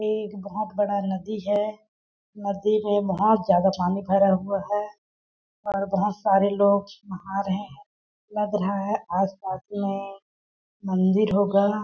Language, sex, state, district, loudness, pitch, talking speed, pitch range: Hindi, female, Chhattisgarh, Balrampur, -24 LUFS, 200 Hz, 135 wpm, 195-210 Hz